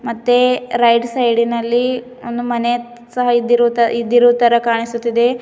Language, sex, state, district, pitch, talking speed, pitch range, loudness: Kannada, female, Karnataka, Bidar, 240 Hz, 120 wpm, 235-245 Hz, -15 LUFS